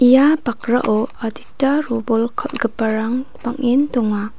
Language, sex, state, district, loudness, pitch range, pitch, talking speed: Garo, female, Meghalaya, North Garo Hills, -18 LUFS, 225-270 Hz, 240 Hz, 95 wpm